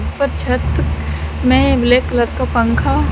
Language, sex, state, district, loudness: Hindi, female, Haryana, Charkhi Dadri, -16 LUFS